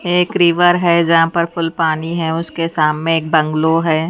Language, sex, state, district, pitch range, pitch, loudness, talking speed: Hindi, female, Haryana, Charkhi Dadri, 160-170 Hz, 165 Hz, -15 LUFS, 190 wpm